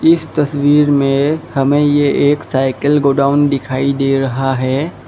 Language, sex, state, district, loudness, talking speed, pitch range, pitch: Hindi, male, Assam, Kamrup Metropolitan, -14 LUFS, 140 wpm, 135-145 Hz, 140 Hz